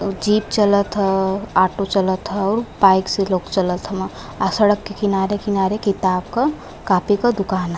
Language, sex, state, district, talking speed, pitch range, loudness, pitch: Bhojpuri, female, Uttar Pradesh, Varanasi, 175 wpm, 190-205 Hz, -19 LUFS, 195 Hz